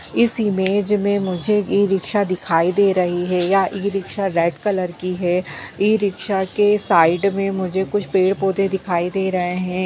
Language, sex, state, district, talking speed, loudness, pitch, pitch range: Hindi, female, Bihar, Bhagalpur, 160 wpm, -19 LUFS, 190 Hz, 180-200 Hz